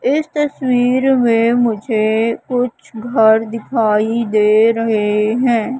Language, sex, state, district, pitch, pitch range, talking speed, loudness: Hindi, female, Madhya Pradesh, Katni, 230 Hz, 220-250 Hz, 105 wpm, -15 LUFS